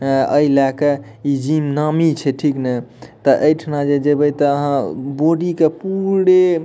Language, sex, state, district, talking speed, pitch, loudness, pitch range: Maithili, male, Bihar, Madhepura, 170 wpm, 145 Hz, -16 LUFS, 140-160 Hz